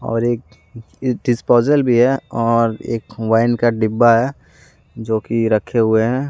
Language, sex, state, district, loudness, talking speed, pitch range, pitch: Hindi, male, Jharkhand, Deoghar, -17 LUFS, 155 wpm, 110-120 Hz, 115 Hz